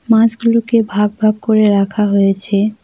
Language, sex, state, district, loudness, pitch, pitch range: Bengali, female, West Bengal, Cooch Behar, -13 LUFS, 215 Hz, 205-225 Hz